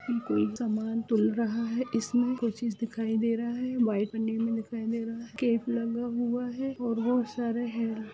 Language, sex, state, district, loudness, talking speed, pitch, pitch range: Hindi, female, Jharkhand, Jamtara, -30 LUFS, 205 wpm, 230 Hz, 225-240 Hz